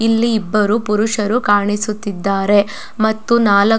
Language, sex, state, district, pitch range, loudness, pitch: Kannada, female, Karnataka, Dakshina Kannada, 205-225 Hz, -16 LUFS, 210 Hz